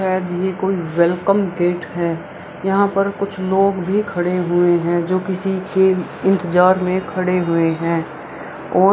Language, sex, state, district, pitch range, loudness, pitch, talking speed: Hindi, female, Bihar, Araria, 175-195 Hz, -18 LUFS, 185 Hz, 160 wpm